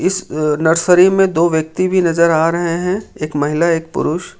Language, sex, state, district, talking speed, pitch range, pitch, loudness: Hindi, male, Jharkhand, Ranchi, 190 wpm, 160-185 Hz, 170 Hz, -15 LUFS